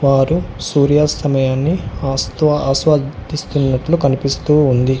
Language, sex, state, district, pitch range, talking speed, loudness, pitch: Telugu, male, Telangana, Hyderabad, 135-150 Hz, 70 wpm, -16 LUFS, 140 Hz